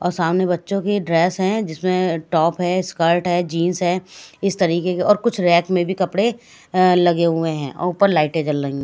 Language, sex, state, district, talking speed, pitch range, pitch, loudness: Hindi, female, Bihar, Katihar, 205 wpm, 170-185 Hz, 180 Hz, -19 LUFS